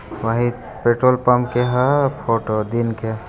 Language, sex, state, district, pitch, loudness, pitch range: Hindi, male, Bihar, Gopalganj, 120 Hz, -19 LUFS, 115-125 Hz